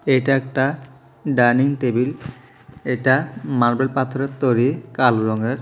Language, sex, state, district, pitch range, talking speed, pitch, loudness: Bengali, male, Tripura, South Tripura, 125-135 Hz, 105 wpm, 130 Hz, -19 LUFS